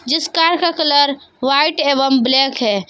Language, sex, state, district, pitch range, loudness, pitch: Hindi, female, Jharkhand, Palamu, 265-315 Hz, -14 LUFS, 285 Hz